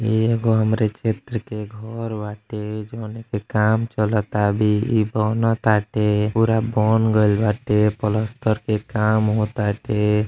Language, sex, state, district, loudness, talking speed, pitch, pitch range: Bhojpuri, male, Uttar Pradesh, Deoria, -21 LUFS, 130 wpm, 110 Hz, 105-110 Hz